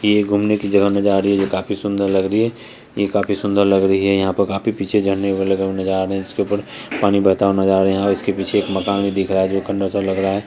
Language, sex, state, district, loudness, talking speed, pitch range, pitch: Hindi, female, Bihar, Saharsa, -18 LUFS, 310 wpm, 95-100 Hz, 100 Hz